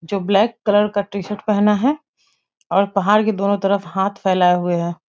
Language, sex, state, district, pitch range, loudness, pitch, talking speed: Hindi, female, Bihar, Muzaffarpur, 190-210 Hz, -18 LUFS, 200 Hz, 190 wpm